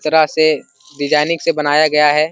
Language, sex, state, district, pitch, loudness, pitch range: Hindi, male, Bihar, Jamui, 150 Hz, -14 LUFS, 150-155 Hz